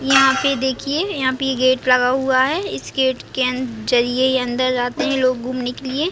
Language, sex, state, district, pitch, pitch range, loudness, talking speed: Hindi, female, Chhattisgarh, Raigarh, 260 Hz, 255-270 Hz, -18 LUFS, 215 wpm